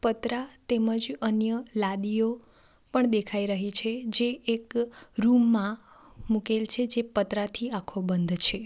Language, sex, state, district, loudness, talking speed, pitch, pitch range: Gujarati, female, Gujarat, Valsad, -25 LUFS, 130 wpm, 225 Hz, 205-240 Hz